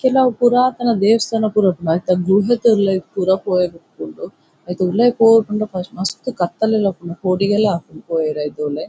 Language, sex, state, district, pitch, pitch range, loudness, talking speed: Tulu, female, Karnataka, Dakshina Kannada, 195 Hz, 175-225 Hz, -17 LUFS, 150 wpm